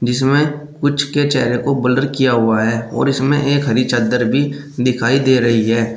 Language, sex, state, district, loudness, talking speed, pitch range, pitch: Hindi, male, Uttar Pradesh, Shamli, -16 LUFS, 190 wpm, 120-140 Hz, 130 Hz